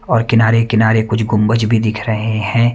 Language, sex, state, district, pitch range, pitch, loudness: Hindi, male, Himachal Pradesh, Shimla, 110-115 Hz, 110 Hz, -14 LUFS